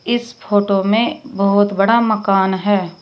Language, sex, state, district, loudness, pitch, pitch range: Hindi, female, Uttar Pradesh, Shamli, -16 LUFS, 205 Hz, 195-230 Hz